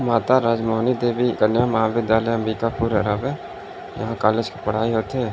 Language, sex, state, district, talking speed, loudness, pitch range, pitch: Hindi, male, Chhattisgarh, Sarguja, 145 wpm, -21 LUFS, 110-120 Hz, 115 Hz